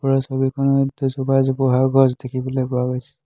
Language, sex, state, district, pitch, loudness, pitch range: Assamese, male, Assam, Hailakandi, 135 Hz, -19 LUFS, 130-135 Hz